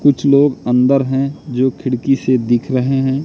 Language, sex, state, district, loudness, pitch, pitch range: Hindi, male, Madhya Pradesh, Katni, -15 LUFS, 135 Hz, 125-140 Hz